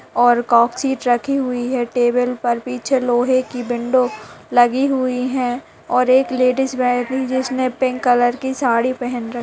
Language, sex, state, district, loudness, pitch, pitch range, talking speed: Hindi, female, Bihar, Kishanganj, -18 LUFS, 250 Hz, 245-260 Hz, 165 wpm